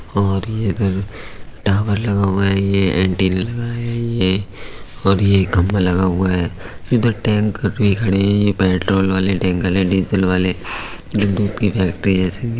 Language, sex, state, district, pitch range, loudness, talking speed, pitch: Hindi, male, Uttar Pradesh, Budaun, 95-105 Hz, -17 LUFS, 170 wpm, 100 Hz